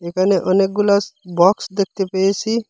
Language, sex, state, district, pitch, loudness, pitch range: Bengali, male, Assam, Hailakandi, 195 Hz, -17 LUFS, 190-200 Hz